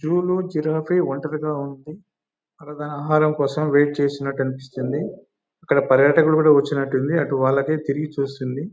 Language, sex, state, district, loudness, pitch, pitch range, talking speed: Telugu, male, Telangana, Nalgonda, -20 LUFS, 145 Hz, 140-155 Hz, 145 wpm